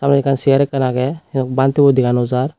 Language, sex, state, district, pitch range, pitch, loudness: Chakma, female, Tripura, West Tripura, 130-140 Hz, 135 Hz, -15 LUFS